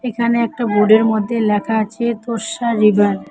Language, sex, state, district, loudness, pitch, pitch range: Bengali, female, West Bengal, Cooch Behar, -16 LUFS, 225 Hz, 210-235 Hz